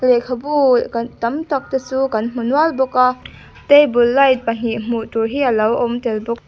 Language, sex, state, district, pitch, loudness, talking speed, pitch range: Mizo, female, Mizoram, Aizawl, 250 Hz, -17 LUFS, 195 wpm, 235-270 Hz